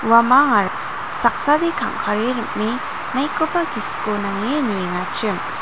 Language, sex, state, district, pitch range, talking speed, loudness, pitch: Garo, female, Meghalaya, North Garo Hills, 200-300 Hz, 75 wpm, -19 LUFS, 235 Hz